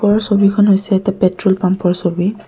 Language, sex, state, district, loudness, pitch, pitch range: Assamese, female, Assam, Kamrup Metropolitan, -14 LUFS, 195 Hz, 185-205 Hz